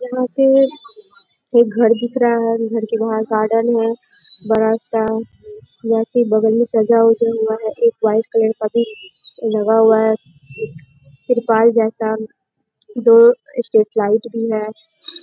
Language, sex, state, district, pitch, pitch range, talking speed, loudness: Hindi, female, Bihar, Bhagalpur, 225 Hz, 220-235 Hz, 145 wpm, -16 LUFS